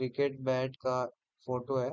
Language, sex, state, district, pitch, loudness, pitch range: Hindi, male, Uttar Pradesh, Deoria, 130 Hz, -34 LUFS, 125-130 Hz